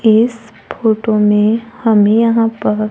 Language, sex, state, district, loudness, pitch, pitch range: Hindi, female, Maharashtra, Gondia, -13 LUFS, 220 Hz, 215-230 Hz